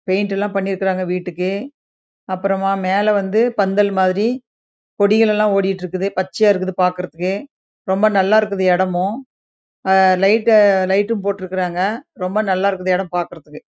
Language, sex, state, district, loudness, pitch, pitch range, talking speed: Tamil, female, Karnataka, Chamarajanagar, -17 LUFS, 195 Hz, 185-205 Hz, 110 wpm